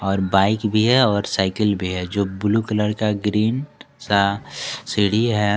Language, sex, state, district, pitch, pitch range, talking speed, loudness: Hindi, male, Jharkhand, Garhwa, 105 Hz, 100-110 Hz, 170 wpm, -20 LUFS